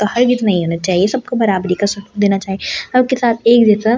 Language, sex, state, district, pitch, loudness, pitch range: Hindi, female, Delhi, New Delhi, 210 Hz, -15 LUFS, 195-240 Hz